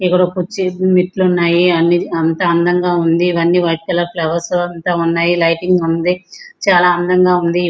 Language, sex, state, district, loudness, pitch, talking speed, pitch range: Telugu, male, Andhra Pradesh, Srikakulam, -14 LUFS, 175 Hz, 140 wpm, 170-180 Hz